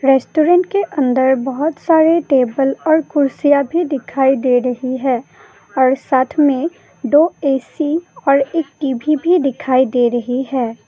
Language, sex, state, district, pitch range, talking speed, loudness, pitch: Hindi, female, Assam, Kamrup Metropolitan, 260-315 Hz, 145 wpm, -15 LUFS, 275 Hz